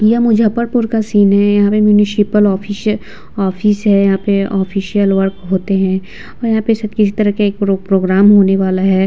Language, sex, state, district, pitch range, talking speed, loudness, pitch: Hindi, female, Bihar, Vaishali, 195-215 Hz, 200 wpm, -13 LUFS, 205 Hz